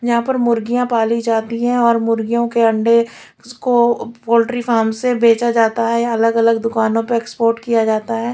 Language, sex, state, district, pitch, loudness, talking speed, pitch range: Hindi, female, Delhi, New Delhi, 230 Hz, -16 LUFS, 170 wpm, 230-235 Hz